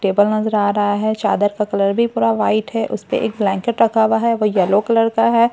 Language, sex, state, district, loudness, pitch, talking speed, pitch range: Hindi, female, Bihar, Katihar, -17 LUFS, 215 Hz, 270 wpm, 205-225 Hz